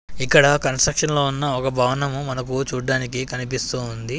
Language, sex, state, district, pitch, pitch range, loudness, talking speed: Telugu, male, Telangana, Adilabad, 130 Hz, 125-140 Hz, -20 LUFS, 130 wpm